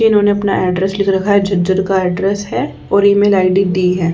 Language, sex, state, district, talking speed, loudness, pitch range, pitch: Hindi, female, Haryana, Charkhi Dadri, 230 wpm, -14 LUFS, 185-200 Hz, 195 Hz